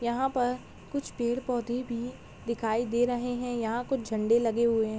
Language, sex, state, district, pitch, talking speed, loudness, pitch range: Hindi, female, Jharkhand, Sahebganj, 240 Hz, 180 wpm, -30 LUFS, 230-245 Hz